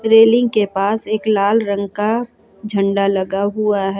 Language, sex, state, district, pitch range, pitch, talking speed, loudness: Hindi, female, Jharkhand, Ranchi, 200-220 Hz, 205 Hz, 165 wpm, -16 LUFS